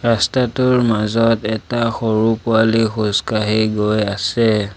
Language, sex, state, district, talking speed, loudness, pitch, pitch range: Assamese, male, Assam, Sonitpur, 115 wpm, -17 LUFS, 110 Hz, 105-115 Hz